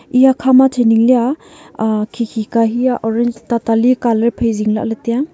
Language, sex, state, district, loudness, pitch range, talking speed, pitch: Wancho, female, Arunachal Pradesh, Longding, -14 LUFS, 225-255 Hz, 170 wpm, 235 Hz